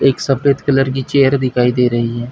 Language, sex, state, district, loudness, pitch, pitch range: Hindi, male, Chhattisgarh, Bilaspur, -15 LUFS, 135 Hz, 125-135 Hz